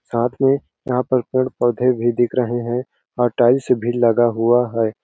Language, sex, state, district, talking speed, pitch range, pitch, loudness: Hindi, male, Chhattisgarh, Balrampur, 200 wpm, 120-125 Hz, 120 Hz, -18 LUFS